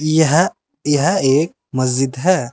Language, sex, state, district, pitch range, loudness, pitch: Hindi, male, Uttar Pradesh, Saharanpur, 135-185 Hz, -16 LUFS, 155 Hz